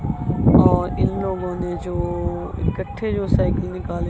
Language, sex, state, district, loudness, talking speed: Hindi, female, Punjab, Kapurthala, -21 LUFS, 130 wpm